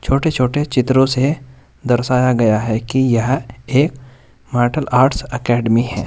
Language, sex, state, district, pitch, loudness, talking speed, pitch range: Hindi, male, Uttar Pradesh, Saharanpur, 125 Hz, -16 LUFS, 140 wpm, 120-135 Hz